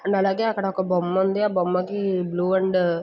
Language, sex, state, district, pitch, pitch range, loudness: Telugu, female, Andhra Pradesh, Guntur, 190 Hz, 180-195 Hz, -23 LUFS